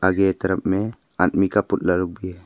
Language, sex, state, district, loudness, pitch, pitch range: Hindi, male, Arunachal Pradesh, Papum Pare, -21 LUFS, 95 Hz, 90-95 Hz